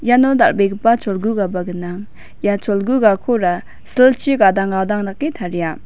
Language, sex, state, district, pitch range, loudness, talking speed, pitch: Garo, female, Meghalaya, West Garo Hills, 190-240 Hz, -16 LUFS, 115 wpm, 205 Hz